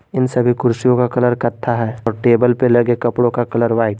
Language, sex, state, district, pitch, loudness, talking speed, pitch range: Hindi, male, Jharkhand, Garhwa, 120 Hz, -16 LUFS, 240 wpm, 115-125 Hz